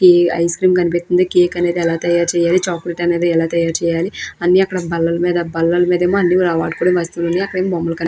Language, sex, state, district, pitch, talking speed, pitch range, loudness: Telugu, female, Andhra Pradesh, Krishna, 175 Hz, 200 wpm, 170-180 Hz, -16 LUFS